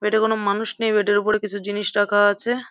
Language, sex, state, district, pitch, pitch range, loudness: Bengali, female, West Bengal, Jhargram, 210 Hz, 205-220 Hz, -20 LUFS